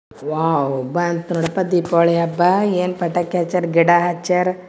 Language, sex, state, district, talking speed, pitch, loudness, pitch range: Kannada, female, Karnataka, Gulbarga, 130 wpm, 175 Hz, -18 LUFS, 170-180 Hz